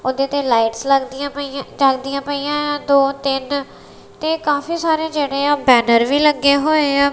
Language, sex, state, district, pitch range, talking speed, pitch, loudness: Punjabi, female, Punjab, Kapurthala, 275-290 Hz, 150 wpm, 280 Hz, -17 LUFS